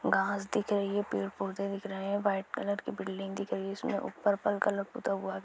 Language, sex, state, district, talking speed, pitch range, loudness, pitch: Hindi, female, Chhattisgarh, Kabirdham, 265 wpm, 195-205 Hz, -33 LUFS, 200 Hz